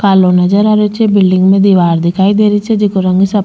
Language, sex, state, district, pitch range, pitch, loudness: Rajasthani, female, Rajasthan, Churu, 185-205 Hz, 195 Hz, -10 LUFS